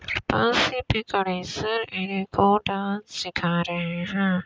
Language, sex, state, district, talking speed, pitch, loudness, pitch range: Hindi, female, Bihar, Kishanganj, 65 wpm, 195 Hz, -25 LUFS, 180-200 Hz